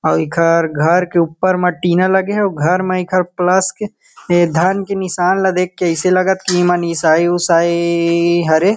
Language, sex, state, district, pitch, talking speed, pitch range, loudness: Chhattisgarhi, male, Chhattisgarh, Kabirdham, 180 Hz, 190 wpm, 170-185 Hz, -14 LUFS